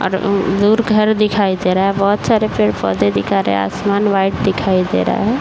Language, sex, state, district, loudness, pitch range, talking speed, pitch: Hindi, female, Uttar Pradesh, Varanasi, -15 LUFS, 185-210 Hz, 210 wpm, 195 Hz